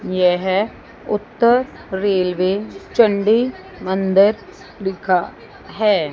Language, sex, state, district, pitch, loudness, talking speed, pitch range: Hindi, female, Chandigarh, Chandigarh, 195 Hz, -18 LUFS, 70 wpm, 185-215 Hz